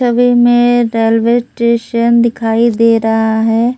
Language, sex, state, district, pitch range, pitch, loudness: Hindi, female, Delhi, New Delhi, 225-240 Hz, 235 Hz, -11 LUFS